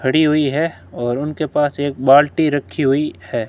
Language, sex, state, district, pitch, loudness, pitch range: Hindi, male, Rajasthan, Bikaner, 145 Hz, -17 LUFS, 135-150 Hz